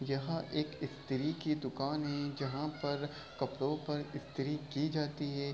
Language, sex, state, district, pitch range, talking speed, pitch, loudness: Hindi, male, Bihar, Gaya, 140-150 Hz, 150 wpm, 145 Hz, -38 LUFS